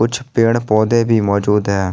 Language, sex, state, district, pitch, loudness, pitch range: Hindi, male, Jharkhand, Ranchi, 110 Hz, -15 LUFS, 100-115 Hz